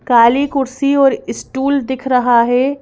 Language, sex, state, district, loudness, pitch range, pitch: Hindi, female, Madhya Pradesh, Bhopal, -14 LUFS, 250-275 Hz, 265 Hz